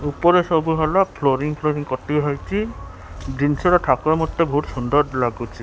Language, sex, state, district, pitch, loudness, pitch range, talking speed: Odia, male, Odisha, Khordha, 145 Hz, -20 LUFS, 130-160 Hz, 140 wpm